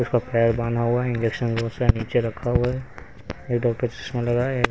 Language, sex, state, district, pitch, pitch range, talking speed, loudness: Hindi, male, Haryana, Rohtak, 120 Hz, 115-125 Hz, 215 wpm, -23 LUFS